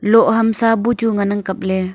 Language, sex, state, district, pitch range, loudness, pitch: Wancho, female, Arunachal Pradesh, Longding, 190-225 Hz, -16 LUFS, 220 Hz